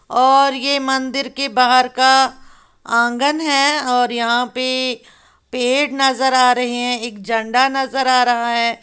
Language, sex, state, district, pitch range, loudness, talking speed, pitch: Hindi, female, Uttar Pradesh, Lalitpur, 245-270 Hz, -16 LUFS, 150 wpm, 255 Hz